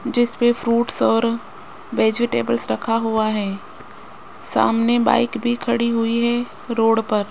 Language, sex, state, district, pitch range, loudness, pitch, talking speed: Hindi, female, Rajasthan, Jaipur, 220-240 Hz, -20 LUFS, 230 Hz, 125 wpm